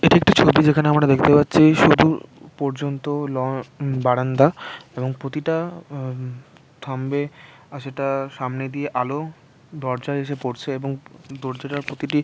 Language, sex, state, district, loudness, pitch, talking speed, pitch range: Bengali, male, West Bengal, North 24 Parganas, -20 LUFS, 140 Hz, 125 wpm, 135-150 Hz